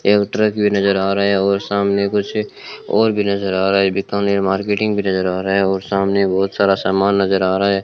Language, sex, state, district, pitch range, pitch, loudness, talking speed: Hindi, male, Rajasthan, Bikaner, 95-100 Hz, 100 Hz, -17 LUFS, 245 wpm